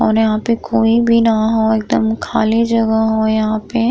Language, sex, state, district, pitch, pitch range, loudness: Bhojpuri, female, Uttar Pradesh, Gorakhpur, 220 Hz, 220-230 Hz, -15 LUFS